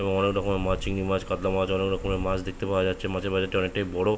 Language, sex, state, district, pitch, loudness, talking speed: Bengali, male, West Bengal, Jhargram, 95 Hz, -27 LUFS, 300 wpm